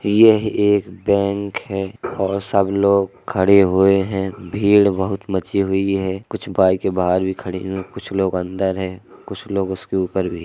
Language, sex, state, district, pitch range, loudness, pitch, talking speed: Hindi, male, Uttar Pradesh, Hamirpur, 95-100 Hz, -19 LUFS, 95 Hz, 170 wpm